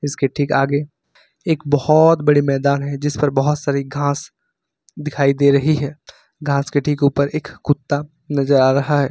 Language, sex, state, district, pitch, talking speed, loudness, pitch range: Hindi, male, Uttar Pradesh, Lucknow, 145 Hz, 180 wpm, -17 LUFS, 140-150 Hz